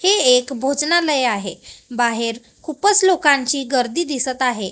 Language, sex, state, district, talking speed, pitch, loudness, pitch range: Marathi, female, Maharashtra, Gondia, 125 wpm, 265 Hz, -17 LUFS, 245-310 Hz